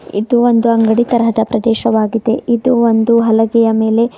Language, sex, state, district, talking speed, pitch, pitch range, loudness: Kannada, female, Karnataka, Bidar, 130 wpm, 230 Hz, 225-235 Hz, -12 LUFS